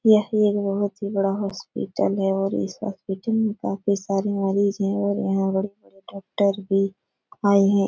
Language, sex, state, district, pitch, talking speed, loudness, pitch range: Hindi, female, Bihar, Jahanabad, 200 Hz, 170 wpm, -23 LUFS, 195-205 Hz